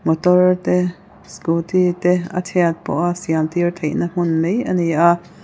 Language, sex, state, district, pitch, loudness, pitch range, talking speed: Mizo, female, Mizoram, Aizawl, 175 Hz, -18 LUFS, 165-180 Hz, 165 wpm